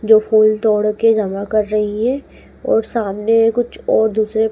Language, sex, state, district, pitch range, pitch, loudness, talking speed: Hindi, female, Madhya Pradesh, Dhar, 215-225 Hz, 220 Hz, -16 LUFS, 175 wpm